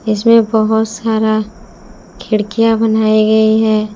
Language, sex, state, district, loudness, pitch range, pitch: Hindi, female, Jharkhand, Palamu, -13 LUFS, 215-225 Hz, 220 Hz